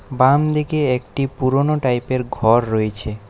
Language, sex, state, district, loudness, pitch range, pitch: Bengali, male, West Bengal, Alipurduar, -18 LUFS, 115-140 Hz, 130 Hz